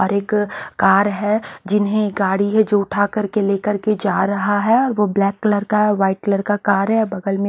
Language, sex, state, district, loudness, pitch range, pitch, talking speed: Hindi, female, Haryana, Charkhi Dadri, -18 LUFS, 200-210 Hz, 205 Hz, 210 wpm